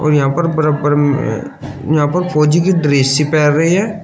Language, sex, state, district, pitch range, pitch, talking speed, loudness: Hindi, male, Uttar Pradesh, Shamli, 145-165 Hz, 150 Hz, 180 wpm, -14 LUFS